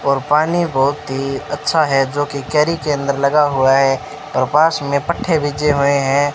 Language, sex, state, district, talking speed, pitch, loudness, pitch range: Hindi, male, Rajasthan, Bikaner, 190 wpm, 145 Hz, -16 LUFS, 135-150 Hz